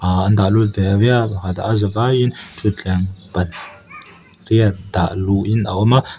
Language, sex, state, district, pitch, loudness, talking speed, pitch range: Mizo, male, Mizoram, Aizawl, 100 Hz, -17 LUFS, 185 wpm, 95-110 Hz